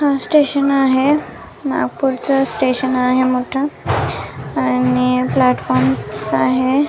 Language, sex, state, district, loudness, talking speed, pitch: Marathi, female, Maharashtra, Nagpur, -16 LUFS, 85 wpm, 250 Hz